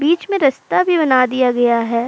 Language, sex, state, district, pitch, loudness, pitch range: Hindi, female, Uttar Pradesh, Jalaun, 260 Hz, -15 LUFS, 245-330 Hz